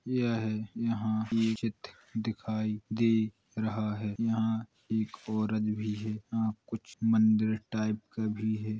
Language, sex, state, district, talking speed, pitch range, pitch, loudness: Hindi, male, Uttar Pradesh, Hamirpur, 150 wpm, 110-115 Hz, 110 Hz, -32 LUFS